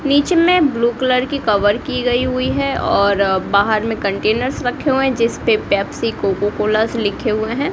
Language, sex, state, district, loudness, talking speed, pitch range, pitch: Hindi, female, Bihar, Kaimur, -17 LUFS, 185 wpm, 210-260 Hz, 230 Hz